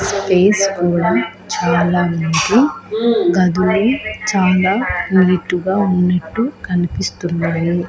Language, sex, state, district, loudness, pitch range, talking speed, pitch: Telugu, female, Andhra Pradesh, Annamaya, -16 LUFS, 175-200 Hz, 75 wpm, 185 Hz